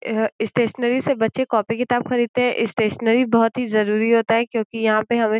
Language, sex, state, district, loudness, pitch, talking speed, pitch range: Hindi, female, Uttar Pradesh, Gorakhpur, -20 LUFS, 230 Hz, 210 wpm, 220-245 Hz